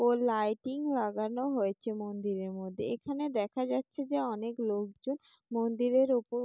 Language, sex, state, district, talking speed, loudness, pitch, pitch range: Bengali, female, West Bengal, Jalpaiguri, 130 wpm, -33 LUFS, 240 Hz, 210-265 Hz